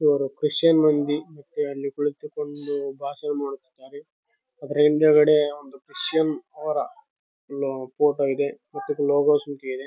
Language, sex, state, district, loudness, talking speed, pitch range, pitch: Kannada, male, Karnataka, Raichur, -23 LUFS, 105 wpm, 140-150 Hz, 145 Hz